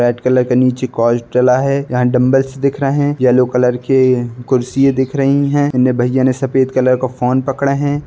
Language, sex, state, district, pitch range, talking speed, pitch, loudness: Hindi, male, Uttar Pradesh, Budaun, 125-135 Hz, 200 wpm, 130 Hz, -14 LUFS